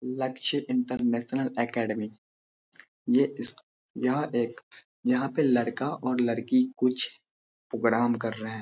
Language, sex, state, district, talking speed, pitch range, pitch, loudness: Hindi, male, Bihar, Darbhanga, 120 wpm, 115-130 Hz, 120 Hz, -27 LUFS